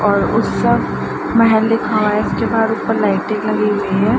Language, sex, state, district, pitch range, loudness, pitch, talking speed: Hindi, female, Bihar, Gaya, 210-225 Hz, -16 LUFS, 220 Hz, 155 wpm